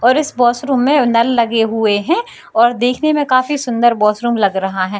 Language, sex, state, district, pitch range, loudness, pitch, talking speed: Hindi, female, Bihar, Jamui, 225-265 Hz, -14 LUFS, 240 Hz, 205 wpm